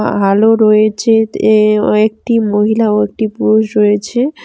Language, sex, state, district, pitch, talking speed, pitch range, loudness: Bengali, female, West Bengal, Cooch Behar, 215 Hz, 135 wpm, 210-225 Hz, -12 LUFS